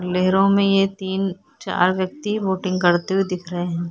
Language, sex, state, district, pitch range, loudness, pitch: Hindi, female, Uttarakhand, Tehri Garhwal, 180-195 Hz, -20 LUFS, 185 Hz